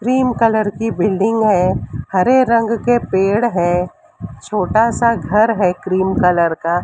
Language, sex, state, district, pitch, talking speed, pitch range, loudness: Hindi, female, Maharashtra, Mumbai Suburban, 210 Hz, 150 wpm, 180-230 Hz, -15 LUFS